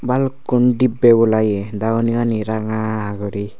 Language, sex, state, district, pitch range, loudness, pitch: Chakma, male, Tripura, Unakoti, 110-120 Hz, -17 LUFS, 110 Hz